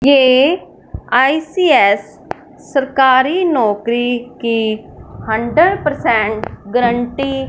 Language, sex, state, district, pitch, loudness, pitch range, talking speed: Hindi, female, Punjab, Fazilka, 255 Hz, -14 LUFS, 230-280 Hz, 70 wpm